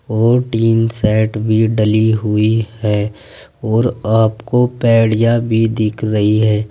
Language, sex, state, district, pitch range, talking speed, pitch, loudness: Hindi, male, Uttar Pradesh, Saharanpur, 110-115 Hz, 115 wpm, 110 Hz, -14 LUFS